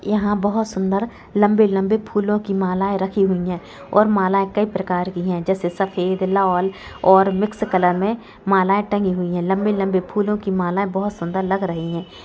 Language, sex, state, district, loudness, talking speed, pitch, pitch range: Hindi, female, Bihar, Gopalganj, -19 LUFS, 175 wpm, 195 Hz, 185-205 Hz